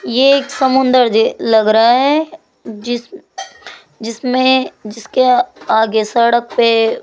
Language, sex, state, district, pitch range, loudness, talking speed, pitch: Hindi, female, Rajasthan, Jaipur, 225-270 Hz, -13 LUFS, 120 wpm, 245 Hz